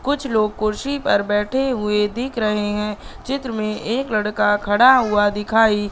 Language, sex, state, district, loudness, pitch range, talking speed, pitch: Hindi, female, Madhya Pradesh, Katni, -19 LUFS, 210-255 Hz, 160 wpm, 215 Hz